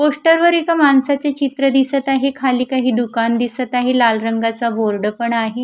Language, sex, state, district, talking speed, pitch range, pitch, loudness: Marathi, female, Maharashtra, Mumbai Suburban, 170 wpm, 235-275 Hz, 255 Hz, -16 LUFS